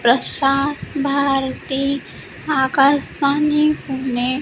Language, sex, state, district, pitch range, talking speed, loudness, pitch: Marathi, female, Maharashtra, Gondia, 265-285 Hz, 70 wpm, -18 LUFS, 275 Hz